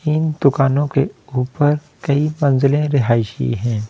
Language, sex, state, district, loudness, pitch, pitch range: Hindi, male, Delhi, New Delhi, -18 LUFS, 140 Hz, 130-150 Hz